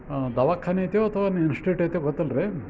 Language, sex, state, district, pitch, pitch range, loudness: Kannada, male, Karnataka, Bijapur, 170 Hz, 140-185 Hz, -25 LUFS